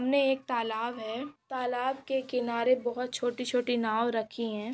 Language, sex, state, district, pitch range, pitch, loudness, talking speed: Hindi, female, Maharashtra, Pune, 230-255 Hz, 245 Hz, -31 LUFS, 165 wpm